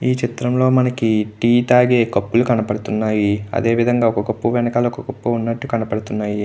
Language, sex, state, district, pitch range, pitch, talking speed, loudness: Telugu, male, Andhra Pradesh, Krishna, 110-120 Hz, 115 Hz, 165 wpm, -18 LUFS